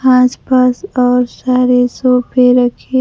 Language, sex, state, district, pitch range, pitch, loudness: Hindi, female, Bihar, Kaimur, 245-255 Hz, 250 Hz, -12 LUFS